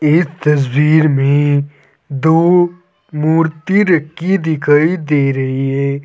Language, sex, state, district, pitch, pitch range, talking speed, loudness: Hindi, male, Uttar Pradesh, Saharanpur, 150 Hz, 140-165 Hz, 100 wpm, -14 LUFS